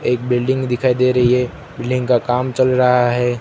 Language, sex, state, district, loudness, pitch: Hindi, male, Gujarat, Gandhinagar, -16 LUFS, 125 Hz